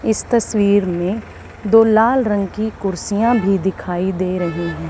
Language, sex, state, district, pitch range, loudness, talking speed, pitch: Hindi, female, Haryana, Charkhi Dadri, 185-220 Hz, -17 LUFS, 160 wpm, 200 Hz